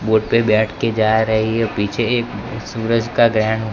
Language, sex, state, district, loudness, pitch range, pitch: Hindi, male, Gujarat, Gandhinagar, -17 LUFS, 110-115 Hz, 110 Hz